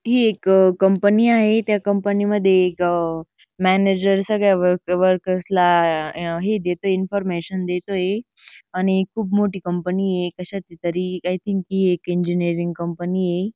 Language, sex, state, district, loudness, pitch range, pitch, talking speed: Marathi, female, Maharashtra, Dhule, -20 LUFS, 175-200 Hz, 185 Hz, 135 wpm